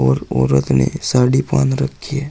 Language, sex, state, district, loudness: Hindi, male, Uttar Pradesh, Saharanpur, -16 LUFS